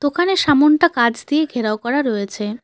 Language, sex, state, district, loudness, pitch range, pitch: Bengali, female, West Bengal, Cooch Behar, -17 LUFS, 225-300 Hz, 265 Hz